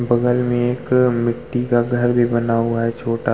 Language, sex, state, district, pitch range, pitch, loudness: Hindi, male, Uttar Pradesh, Muzaffarnagar, 115-125 Hz, 120 Hz, -18 LUFS